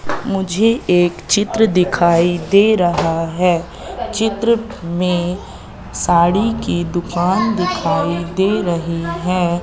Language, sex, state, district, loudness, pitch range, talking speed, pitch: Hindi, female, Madhya Pradesh, Katni, -16 LUFS, 170-205 Hz, 100 wpm, 180 Hz